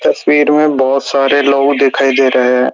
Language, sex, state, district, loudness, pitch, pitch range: Hindi, male, Rajasthan, Jaipur, -11 LUFS, 140 Hz, 135-145 Hz